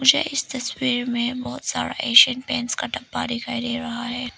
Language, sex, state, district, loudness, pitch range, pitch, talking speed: Hindi, female, Arunachal Pradesh, Papum Pare, -22 LUFS, 245-260 Hz, 250 Hz, 190 wpm